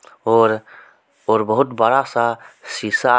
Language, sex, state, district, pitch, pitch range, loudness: Hindi, male, Jharkhand, Deoghar, 115 Hz, 110-120 Hz, -18 LUFS